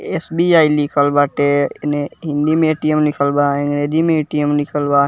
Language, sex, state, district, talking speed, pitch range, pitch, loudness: Bhojpuri, male, Bihar, East Champaran, 155 wpm, 145-155 Hz, 145 Hz, -16 LUFS